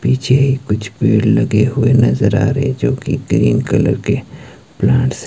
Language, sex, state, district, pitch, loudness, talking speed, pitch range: Hindi, male, Himachal Pradesh, Shimla, 130 Hz, -14 LUFS, 180 wpm, 110-135 Hz